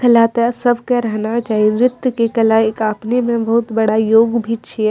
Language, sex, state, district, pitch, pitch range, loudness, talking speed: Maithili, female, Bihar, Madhepura, 230 Hz, 220-235 Hz, -15 LUFS, 195 wpm